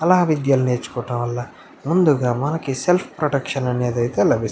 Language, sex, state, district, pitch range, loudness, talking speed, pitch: Telugu, male, Andhra Pradesh, Anantapur, 120-155 Hz, -20 LUFS, 145 wpm, 135 Hz